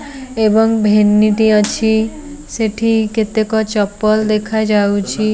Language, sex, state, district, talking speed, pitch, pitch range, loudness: Odia, female, Odisha, Nuapada, 90 wpm, 220 Hz, 210-220 Hz, -14 LUFS